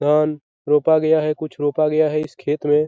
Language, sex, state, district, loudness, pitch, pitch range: Hindi, male, Bihar, Jahanabad, -19 LUFS, 150 Hz, 150-155 Hz